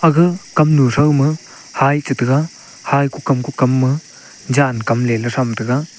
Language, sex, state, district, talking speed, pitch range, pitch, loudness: Wancho, male, Arunachal Pradesh, Longding, 170 wpm, 130-150 Hz, 140 Hz, -16 LUFS